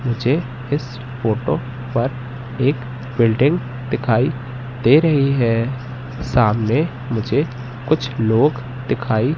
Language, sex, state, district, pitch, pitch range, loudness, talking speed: Hindi, male, Madhya Pradesh, Katni, 125 Hz, 120-135 Hz, -19 LUFS, 95 wpm